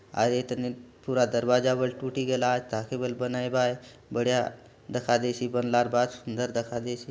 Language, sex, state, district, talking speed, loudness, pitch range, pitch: Halbi, male, Chhattisgarh, Bastar, 175 wpm, -28 LUFS, 120-125 Hz, 125 Hz